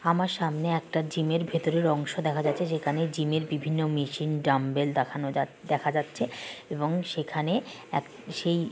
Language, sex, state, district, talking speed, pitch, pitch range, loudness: Bengali, female, West Bengal, Kolkata, 145 wpm, 155 Hz, 150-165 Hz, -29 LUFS